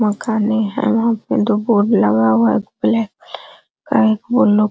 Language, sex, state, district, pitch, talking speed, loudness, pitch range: Hindi, female, Bihar, Araria, 215 Hz, 205 wpm, -16 LUFS, 205-225 Hz